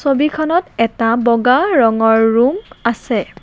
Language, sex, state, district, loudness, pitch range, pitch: Assamese, female, Assam, Kamrup Metropolitan, -14 LUFS, 230-285 Hz, 240 Hz